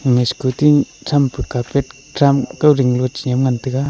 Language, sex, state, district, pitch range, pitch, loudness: Wancho, male, Arunachal Pradesh, Longding, 125-140 Hz, 130 Hz, -16 LUFS